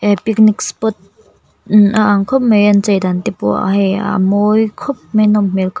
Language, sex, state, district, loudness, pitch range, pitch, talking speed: Mizo, female, Mizoram, Aizawl, -13 LUFS, 195-215 Hz, 205 Hz, 225 wpm